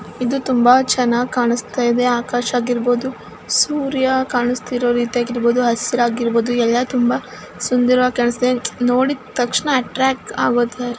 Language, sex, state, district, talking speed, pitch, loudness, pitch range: Kannada, male, Karnataka, Mysore, 120 wpm, 245 Hz, -17 LUFS, 240-255 Hz